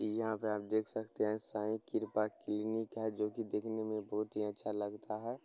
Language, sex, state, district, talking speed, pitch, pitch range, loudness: Hindi, male, Bihar, Gopalganj, 210 wpm, 110 Hz, 105-110 Hz, -38 LUFS